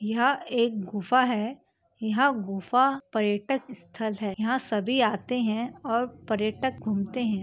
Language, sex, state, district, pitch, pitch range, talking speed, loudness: Hindi, female, Chhattisgarh, Bastar, 230 Hz, 210-255 Hz, 135 wpm, -27 LUFS